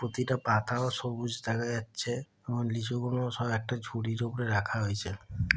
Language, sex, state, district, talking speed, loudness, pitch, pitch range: Bengali, male, West Bengal, Dakshin Dinajpur, 150 wpm, -32 LUFS, 120 Hz, 110-120 Hz